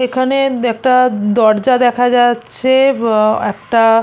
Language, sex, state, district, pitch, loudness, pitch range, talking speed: Bengali, female, West Bengal, Purulia, 245 Hz, -13 LUFS, 225-255 Hz, 120 wpm